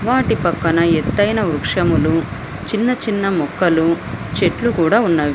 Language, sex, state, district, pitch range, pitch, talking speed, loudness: Telugu, female, Telangana, Hyderabad, 165-215 Hz, 170 Hz, 110 wpm, -17 LUFS